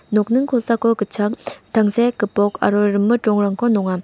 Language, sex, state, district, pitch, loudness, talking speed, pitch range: Garo, female, Meghalaya, West Garo Hills, 210 Hz, -18 LUFS, 135 wpm, 205-235 Hz